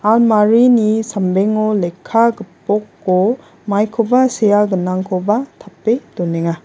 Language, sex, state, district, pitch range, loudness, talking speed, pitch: Garo, female, Meghalaya, West Garo Hills, 190-225 Hz, -15 LUFS, 80 wpm, 210 Hz